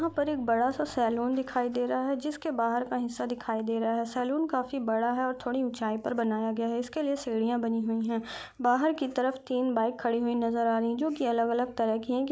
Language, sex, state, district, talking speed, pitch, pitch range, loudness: Hindi, female, Chhattisgarh, Rajnandgaon, 265 wpm, 245 Hz, 230-260 Hz, -29 LUFS